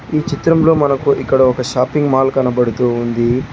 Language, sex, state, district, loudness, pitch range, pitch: Telugu, male, Telangana, Hyderabad, -14 LUFS, 125-145 Hz, 135 Hz